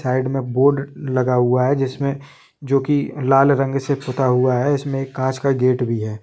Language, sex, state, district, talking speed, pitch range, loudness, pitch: Hindi, male, Jharkhand, Jamtara, 210 wpm, 130-140 Hz, -19 LUFS, 135 Hz